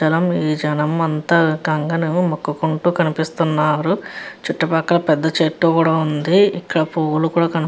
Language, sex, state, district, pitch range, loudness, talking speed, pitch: Telugu, female, Andhra Pradesh, Chittoor, 155-170 Hz, -18 LUFS, 135 wpm, 160 Hz